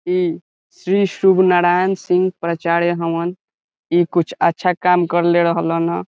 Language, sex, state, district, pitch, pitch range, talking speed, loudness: Bhojpuri, male, Bihar, Saran, 175 Hz, 170-180 Hz, 140 wpm, -17 LUFS